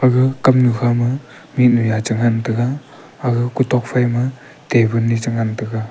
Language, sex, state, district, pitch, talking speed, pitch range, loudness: Wancho, male, Arunachal Pradesh, Longding, 120 Hz, 170 wpm, 115-130 Hz, -17 LUFS